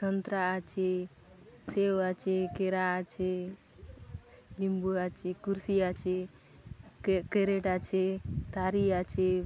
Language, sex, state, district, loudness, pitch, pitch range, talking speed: Halbi, female, Chhattisgarh, Bastar, -32 LUFS, 185 Hz, 185-195 Hz, 90 wpm